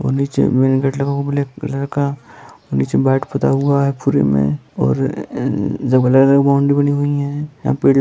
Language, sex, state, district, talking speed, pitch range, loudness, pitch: Hindi, male, Bihar, East Champaran, 225 wpm, 130-140 Hz, -16 LUFS, 140 Hz